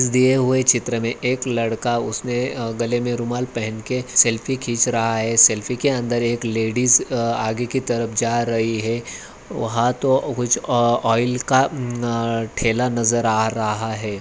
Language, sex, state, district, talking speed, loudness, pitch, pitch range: Hindi, male, Maharashtra, Aurangabad, 175 wpm, -19 LUFS, 120 Hz, 115-125 Hz